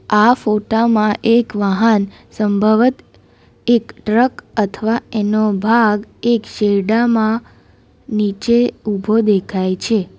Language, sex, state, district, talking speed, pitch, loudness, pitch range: Gujarati, female, Gujarat, Valsad, 100 wpm, 215 Hz, -16 LUFS, 210-230 Hz